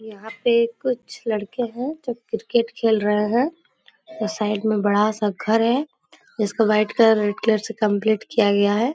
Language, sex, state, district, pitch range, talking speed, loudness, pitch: Hindi, female, Bihar, Supaul, 210-240 Hz, 195 wpm, -21 LUFS, 220 Hz